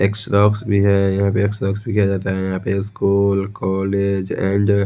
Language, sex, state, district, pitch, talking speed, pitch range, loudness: Hindi, male, Odisha, Khordha, 100 Hz, 195 wpm, 95-100 Hz, -18 LUFS